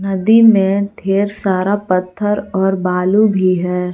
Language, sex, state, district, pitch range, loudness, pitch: Hindi, female, Jharkhand, Garhwa, 185-205 Hz, -14 LUFS, 195 Hz